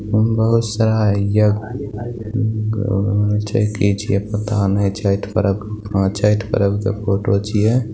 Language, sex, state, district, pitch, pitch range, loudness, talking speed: Maithili, male, Bihar, Begusarai, 105 Hz, 100-110 Hz, -18 LUFS, 120 wpm